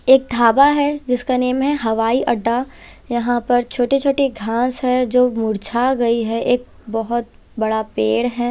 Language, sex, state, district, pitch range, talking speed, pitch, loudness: Hindi, female, Punjab, Kapurthala, 230-255 Hz, 140 wpm, 245 Hz, -18 LUFS